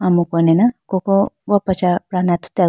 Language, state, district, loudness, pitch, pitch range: Idu Mishmi, Arunachal Pradesh, Lower Dibang Valley, -17 LUFS, 180 Hz, 175-195 Hz